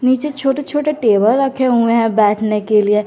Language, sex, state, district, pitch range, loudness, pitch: Hindi, female, Jharkhand, Garhwa, 215-270 Hz, -15 LUFS, 230 Hz